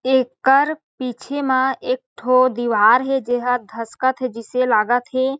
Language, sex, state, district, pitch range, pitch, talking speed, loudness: Chhattisgarhi, female, Chhattisgarh, Sarguja, 245-265 Hz, 255 Hz, 155 wpm, -19 LUFS